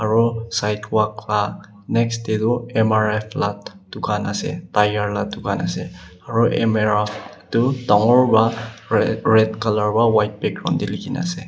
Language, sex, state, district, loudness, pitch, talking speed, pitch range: Nagamese, male, Nagaland, Kohima, -20 LUFS, 110 Hz, 140 wpm, 105-115 Hz